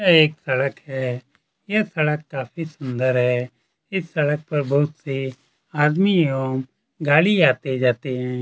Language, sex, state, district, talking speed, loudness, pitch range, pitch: Hindi, male, Chhattisgarh, Kabirdham, 140 wpm, -21 LUFS, 130-160 Hz, 145 Hz